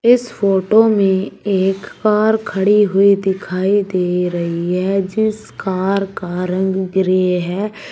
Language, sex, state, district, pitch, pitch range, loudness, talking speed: Hindi, female, Uttar Pradesh, Shamli, 190 Hz, 185-205 Hz, -16 LUFS, 130 wpm